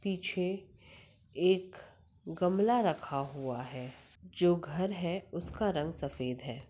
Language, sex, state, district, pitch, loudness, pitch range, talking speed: Hindi, female, Maharashtra, Nagpur, 175 Hz, -33 LUFS, 140-190 Hz, 115 wpm